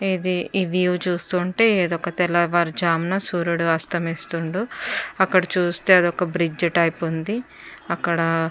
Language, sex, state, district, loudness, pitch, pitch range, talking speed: Telugu, female, Andhra Pradesh, Chittoor, -21 LUFS, 175 Hz, 170-185 Hz, 125 wpm